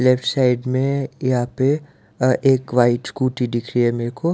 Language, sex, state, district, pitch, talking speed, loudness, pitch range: Hindi, male, Gujarat, Valsad, 130 Hz, 195 wpm, -19 LUFS, 120-135 Hz